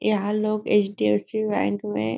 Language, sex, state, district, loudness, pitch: Hindi, female, Maharashtra, Nagpur, -23 LUFS, 200 Hz